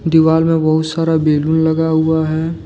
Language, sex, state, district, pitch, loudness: Hindi, male, Jharkhand, Deoghar, 160 Hz, -14 LUFS